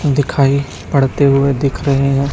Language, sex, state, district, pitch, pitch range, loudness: Hindi, male, Chhattisgarh, Raipur, 140 Hz, 135-140 Hz, -14 LUFS